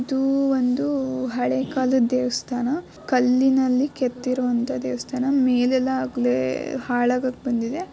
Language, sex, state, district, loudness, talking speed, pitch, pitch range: Kannada, female, Karnataka, Dakshina Kannada, -22 LUFS, 90 wpm, 255 Hz, 245-265 Hz